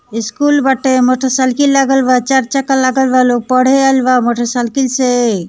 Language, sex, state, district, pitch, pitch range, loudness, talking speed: Bhojpuri, female, Bihar, East Champaran, 255 Hz, 245-270 Hz, -12 LUFS, 165 wpm